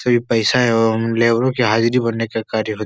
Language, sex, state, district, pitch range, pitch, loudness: Hindi, male, Uttar Pradesh, Etah, 110-120 Hz, 115 Hz, -17 LUFS